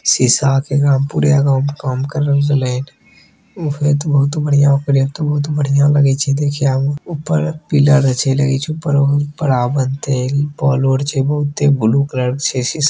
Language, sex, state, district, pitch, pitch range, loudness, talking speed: Maithili, male, Bihar, Begusarai, 140 Hz, 135-145 Hz, -15 LUFS, 190 wpm